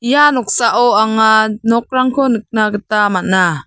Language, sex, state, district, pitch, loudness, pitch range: Garo, female, Meghalaya, South Garo Hills, 220 Hz, -13 LUFS, 210-245 Hz